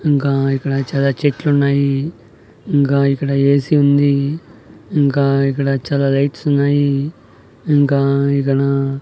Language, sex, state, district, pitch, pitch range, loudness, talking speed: Telugu, male, Andhra Pradesh, Annamaya, 140 Hz, 140-145 Hz, -16 LUFS, 105 wpm